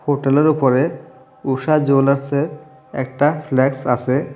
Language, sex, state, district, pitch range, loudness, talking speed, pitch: Bengali, male, Tripura, South Tripura, 130-150 Hz, -17 LUFS, 95 wpm, 140 Hz